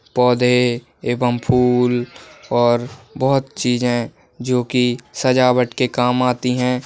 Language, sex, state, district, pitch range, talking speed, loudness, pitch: Hindi, male, Bihar, Bhagalpur, 120-125 Hz, 130 wpm, -18 LUFS, 125 Hz